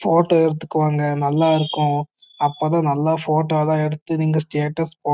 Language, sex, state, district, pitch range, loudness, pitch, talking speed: Tamil, male, Karnataka, Chamarajanagar, 150-160 Hz, -20 LUFS, 155 Hz, 140 wpm